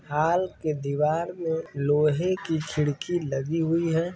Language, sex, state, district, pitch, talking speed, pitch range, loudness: Hindi, male, Rajasthan, Churu, 160 Hz, 130 wpm, 150-170 Hz, -26 LUFS